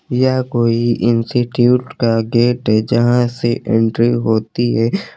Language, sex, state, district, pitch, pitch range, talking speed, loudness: Hindi, male, Uttar Pradesh, Lucknow, 120 Hz, 115-120 Hz, 125 wpm, -15 LUFS